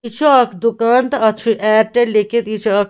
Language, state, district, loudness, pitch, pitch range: Kashmiri, Punjab, Kapurthala, -14 LUFS, 230 Hz, 215-240 Hz